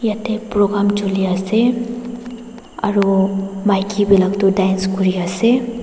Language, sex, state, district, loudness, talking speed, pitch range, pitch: Nagamese, female, Nagaland, Dimapur, -17 LUFS, 95 wpm, 195-230 Hz, 205 Hz